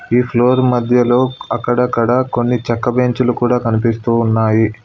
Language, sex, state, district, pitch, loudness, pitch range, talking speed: Telugu, male, Telangana, Hyderabad, 120 Hz, -15 LUFS, 115-125 Hz, 135 wpm